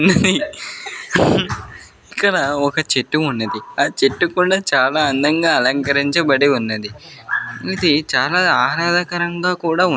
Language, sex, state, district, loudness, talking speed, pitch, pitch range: Telugu, male, Andhra Pradesh, Srikakulam, -17 LUFS, 95 wpm, 155 Hz, 140-175 Hz